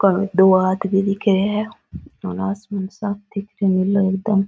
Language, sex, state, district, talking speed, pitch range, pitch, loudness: Rajasthani, female, Rajasthan, Nagaur, 145 wpm, 190-200 Hz, 195 Hz, -19 LUFS